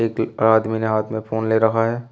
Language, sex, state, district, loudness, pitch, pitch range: Hindi, male, Uttar Pradesh, Shamli, -19 LUFS, 110 Hz, 110-115 Hz